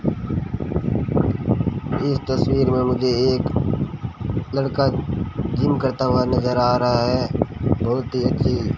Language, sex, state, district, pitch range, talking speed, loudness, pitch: Hindi, male, Rajasthan, Bikaner, 125-135 Hz, 115 wpm, -21 LUFS, 125 Hz